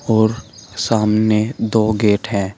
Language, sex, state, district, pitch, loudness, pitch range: Hindi, male, Uttar Pradesh, Shamli, 110 Hz, -17 LUFS, 105-110 Hz